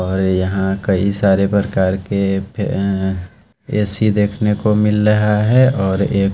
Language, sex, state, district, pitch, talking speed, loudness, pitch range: Hindi, male, Haryana, Charkhi Dadri, 100 Hz, 140 wpm, -16 LUFS, 95-105 Hz